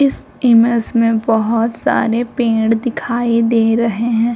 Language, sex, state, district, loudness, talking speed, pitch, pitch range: Hindi, female, Uttar Pradesh, Jyotiba Phule Nagar, -15 LUFS, 140 wpm, 230 Hz, 225-235 Hz